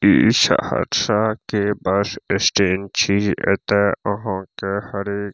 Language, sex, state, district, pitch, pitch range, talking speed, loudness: Maithili, male, Bihar, Saharsa, 100 Hz, 100-105 Hz, 135 wpm, -19 LUFS